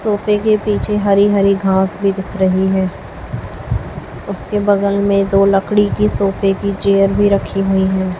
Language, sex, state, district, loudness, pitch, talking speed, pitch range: Hindi, female, Chhattisgarh, Raipur, -15 LUFS, 195 Hz, 170 wpm, 190-205 Hz